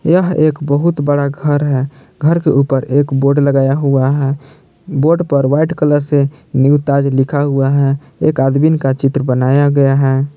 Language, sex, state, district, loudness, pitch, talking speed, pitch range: Hindi, male, Jharkhand, Palamu, -13 LUFS, 140 Hz, 180 wpm, 135-150 Hz